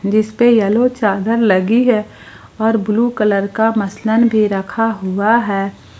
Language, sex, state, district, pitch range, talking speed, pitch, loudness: Hindi, female, Jharkhand, Palamu, 200-230 Hz, 130 wpm, 215 Hz, -15 LUFS